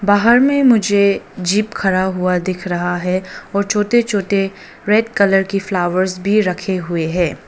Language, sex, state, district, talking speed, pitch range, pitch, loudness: Hindi, female, Arunachal Pradesh, Papum Pare, 160 wpm, 180-205 Hz, 195 Hz, -16 LUFS